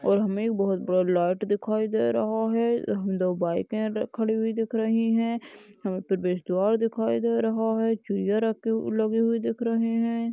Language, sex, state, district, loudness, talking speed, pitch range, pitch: Hindi, female, Chhattisgarh, Balrampur, -26 LUFS, 175 wpm, 195-225 Hz, 220 Hz